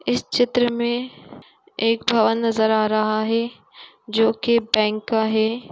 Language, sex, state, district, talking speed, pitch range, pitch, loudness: Hindi, female, Uttar Pradesh, Gorakhpur, 145 wpm, 220-235 Hz, 225 Hz, -20 LUFS